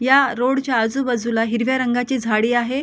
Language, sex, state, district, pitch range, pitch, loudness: Marathi, female, Maharashtra, Solapur, 235-260 Hz, 245 Hz, -19 LUFS